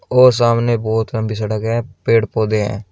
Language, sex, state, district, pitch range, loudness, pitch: Hindi, male, Uttar Pradesh, Shamli, 110-115 Hz, -16 LUFS, 110 Hz